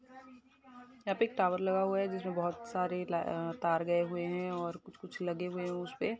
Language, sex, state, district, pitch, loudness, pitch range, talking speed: Hindi, female, Maharashtra, Sindhudurg, 185 Hz, -35 LUFS, 175-225 Hz, 225 wpm